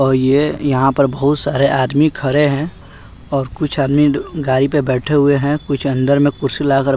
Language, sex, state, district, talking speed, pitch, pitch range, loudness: Hindi, male, Bihar, West Champaran, 190 wpm, 140 Hz, 135-145 Hz, -15 LUFS